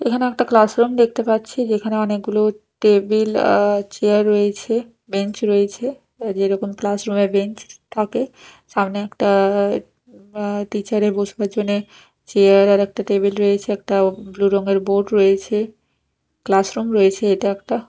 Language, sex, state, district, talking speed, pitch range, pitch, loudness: Bengali, female, Odisha, Nuapada, 130 wpm, 200-220 Hz, 205 Hz, -18 LUFS